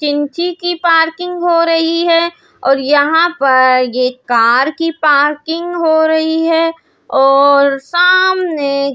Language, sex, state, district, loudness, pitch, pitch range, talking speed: Hindi, female, Delhi, New Delhi, -12 LUFS, 320 Hz, 280-340 Hz, 125 wpm